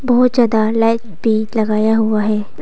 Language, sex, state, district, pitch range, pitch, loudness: Hindi, female, Arunachal Pradesh, Papum Pare, 215-230 Hz, 220 Hz, -15 LUFS